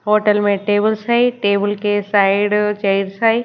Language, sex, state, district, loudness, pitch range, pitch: Hindi, female, Haryana, Charkhi Dadri, -16 LUFS, 200-215 Hz, 205 Hz